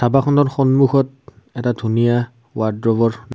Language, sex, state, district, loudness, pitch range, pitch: Assamese, male, Assam, Kamrup Metropolitan, -17 LUFS, 115-135 Hz, 120 Hz